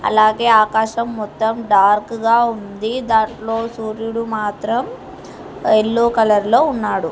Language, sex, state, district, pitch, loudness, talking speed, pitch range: Telugu, female, Telangana, Hyderabad, 220 Hz, -17 LUFS, 110 wpm, 215-230 Hz